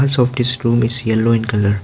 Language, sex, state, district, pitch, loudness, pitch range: English, male, Arunachal Pradesh, Lower Dibang Valley, 115 Hz, -14 LUFS, 110-125 Hz